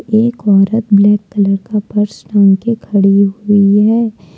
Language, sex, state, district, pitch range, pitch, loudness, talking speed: Hindi, female, Jharkhand, Deoghar, 195-215 Hz, 205 Hz, -12 LUFS, 150 wpm